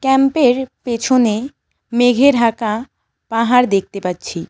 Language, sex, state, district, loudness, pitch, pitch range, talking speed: Bengali, female, West Bengal, Cooch Behar, -16 LUFS, 240 Hz, 220-260 Hz, 95 wpm